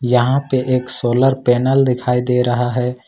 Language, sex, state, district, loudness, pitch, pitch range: Hindi, male, Jharkhand, Ranchi, -16 LUFS, 125 Hz, 125-130 Hz